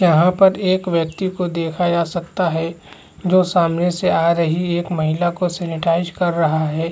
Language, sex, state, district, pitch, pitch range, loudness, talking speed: Hindi, male, Chhattisgarh, Rajnandgaon, 175 Hz, 165-180 Hz, -18 LUFS, 180 wpm